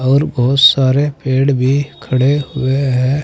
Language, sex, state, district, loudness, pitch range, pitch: Hindi, male, Uttar Pradesh, Saharanpur, -14 LUFS, 130-140 Hz, 135 Hz